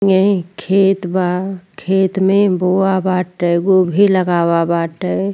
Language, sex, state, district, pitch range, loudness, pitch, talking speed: Bhojpuri, female, Uttar Pradesh, Ghazipur, 180-195 Hz, -15 LUFS, 185 Hz, 110 wpm